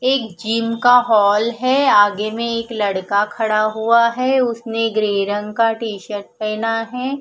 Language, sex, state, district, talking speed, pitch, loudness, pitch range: Hindi, female, Punjab, Fazilka, 165 wpm, 225 Hz, -17 LUFS, 210-235 Hz